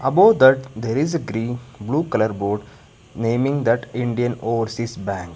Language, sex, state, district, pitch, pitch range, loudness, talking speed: English, male, Karnataka, Bangalore, 115 Hz, 110-130 Hz, -20 LUFS, 155 wpm